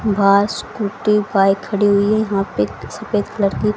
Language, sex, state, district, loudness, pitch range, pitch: Hindi, female, Haryana, Rohtak, -17 LUFS, 195-210 Hz, 200 Hz